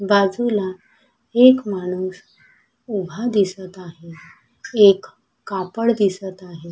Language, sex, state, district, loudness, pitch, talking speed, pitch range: Marathi, female, Maharashtra, Sindhudurg, -19 LUFS, 195 Hz, 90 wpm, 185-220 Hz